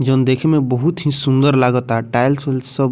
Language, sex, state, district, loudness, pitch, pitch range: Bhojpuri, male, Bihar, Muzaffarpur, -16 LUFS, 135 Hz, 125-140 Hz